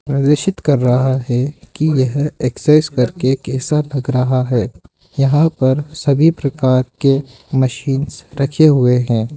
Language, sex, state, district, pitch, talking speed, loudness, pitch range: Hindi, male, Rajasthan, Jaipur, 135 Hz, 135 wpm, -15 LUFS, 130-145 Hz